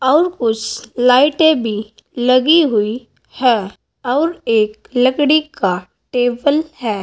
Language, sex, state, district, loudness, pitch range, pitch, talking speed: Hindi, female, Uttar Pradesh, Saharanpur, -15 LUFS, 225-290 Hz, 245 Hz, 110 wpm